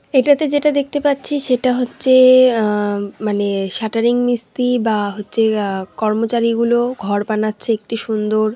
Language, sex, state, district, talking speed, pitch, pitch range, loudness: Bengali, female, West Bengal, Jalpaiguri, 125 wpm, 230 Hz, 210-255 Hz, -16 LUFS